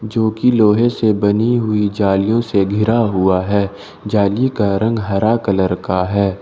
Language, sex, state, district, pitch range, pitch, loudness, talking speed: Hindi, male, Jharkhand, Ranchi, 100-110 Hz, 105 Hz, -16 LUFS, 170 wpm